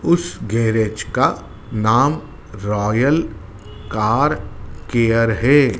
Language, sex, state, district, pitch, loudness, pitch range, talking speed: Hindi, male, Madhya Pradesh, Dhar, 110 Hz, -18 LUFS, 105-125 Hz, 85 wpm